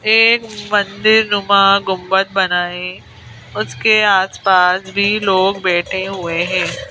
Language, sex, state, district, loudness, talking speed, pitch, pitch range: Hindi, female, Madhya Pradesh, Bhopal, -14 LUFS, 115 wpm, 190 Hz, 180-205 Hz